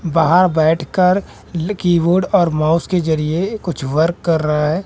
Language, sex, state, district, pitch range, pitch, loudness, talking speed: Hindi, male, Bihar, West Champaran, 160-180 Hz, 170 Hz, -16 LUFS, 160 wpm